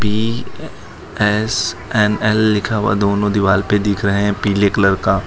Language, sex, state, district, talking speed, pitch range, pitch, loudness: Hindi, male, Gujarat, Valsad, 150 wpm, 100-105 Hz, 105 Hz, -16 LUFS